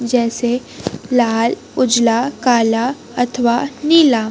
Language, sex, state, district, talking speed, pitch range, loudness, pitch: Hindi, female, Jharkhand, Garhwa, 85 wpm, 230-255 Hz, -16 LUFS, 245 Hz